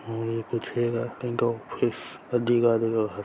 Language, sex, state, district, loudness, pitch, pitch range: Hindi, male, Chhattisgarh, Sarguja, -27 LUFS, 115 Hz, 115-120 Hz